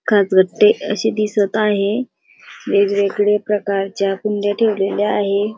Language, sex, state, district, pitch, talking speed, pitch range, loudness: Marathi, female, Maharashtra, Dhule, 205 Hz, 95 wpm, 200-210 Hz, -17 LUFS